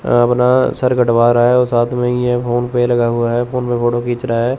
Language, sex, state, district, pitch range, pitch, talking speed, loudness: Hindi, male, Chandigarh, Chandigarh, 120-125 Hz, 120 Hz, 260 wpm, -14 LUFS